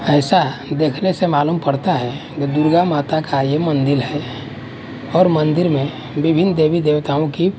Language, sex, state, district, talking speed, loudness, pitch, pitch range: Hindi, male, Haryana, Charkhi Dadri, 160 wpm, -17 LUFS, 150 Hz, 140-165 Hz